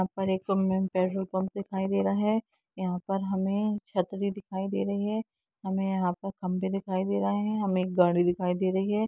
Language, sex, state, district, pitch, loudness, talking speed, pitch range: Hindi, female, Jharkhand, Jamtara, 190 Hz, -29 LUFS, 210 wpm, 185-200 Hz